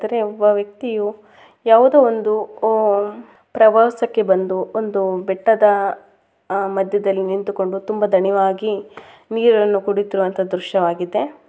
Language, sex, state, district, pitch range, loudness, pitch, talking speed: Kannada, female, Karnataka, Dakshina Kannada, 195-220 Hz, -18 LUFS, 205 Hz, 90 wpm